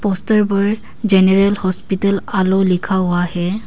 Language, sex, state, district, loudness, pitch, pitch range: Hindi, female, Arunachal Pradesh, Papum Pare, -15 LUFS, 195 Hz, 185-200 Hz